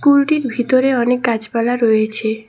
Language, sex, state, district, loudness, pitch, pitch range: Bengali, female, West Bengal, Cooch Behar, -16 LUFS, 245 Hz, 220-260 Hz